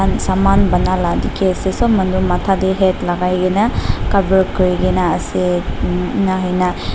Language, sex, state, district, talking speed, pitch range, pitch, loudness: Nagamese, female, Nagaland, Dimapur, 155 wpm, 180-190 Hz, 185 Hz, -16 LUFS